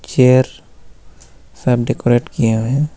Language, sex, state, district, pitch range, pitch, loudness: Hindi, male, Jharkhand, Ranchi, 120-130 Hz, 125 Hz, -15 LUFS